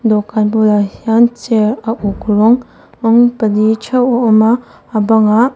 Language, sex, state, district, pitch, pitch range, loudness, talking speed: Mizo, female, Mizoram, Aizawl, 225 Hz, 215-235 Hz, -12 LUFS, 170 wpm